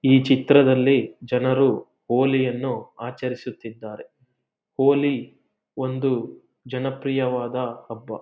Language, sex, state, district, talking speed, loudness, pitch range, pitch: Kannada, male, Karnataka, Mysore, 65 wpm, -22 LUFS, 125-135 Hz, 130 Hz